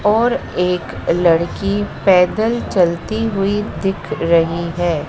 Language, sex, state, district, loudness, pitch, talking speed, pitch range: Hindi, female, Madhya Pradesh, Dhar, -17 LUFS, 180 Hz, 105 wpm, 170-210 Hz